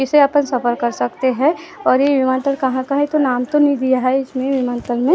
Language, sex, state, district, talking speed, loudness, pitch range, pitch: Hindi, female, Maharashtra, Gondia, 255 wpm, -17 LUFS, 255-285 Hz, 265 Hz